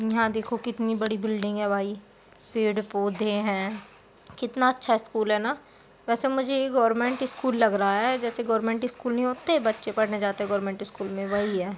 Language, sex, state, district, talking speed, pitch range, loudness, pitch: Hindi, female, Uttar Pradesh, Deoria, 180 wpm, 205-245 Hz, -26 LUFS, 220 Hz